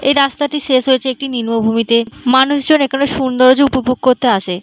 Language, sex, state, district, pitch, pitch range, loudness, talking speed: Bengali, female, West Bengal, Malda, 260 Hz, 245-275 Hz, -13 LUFS, 195 wpm